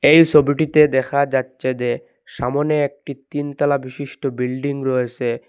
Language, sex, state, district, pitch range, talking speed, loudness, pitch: Bengali, male, Assam, Hailakandi, 130-145 Hz, 120 wpm, -19 LUFS, 140 Hz